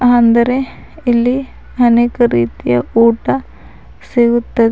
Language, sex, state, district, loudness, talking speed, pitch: Kannada, female, Karnataka, Bidar, -13 LUFS, 75 wpm, 235 Hz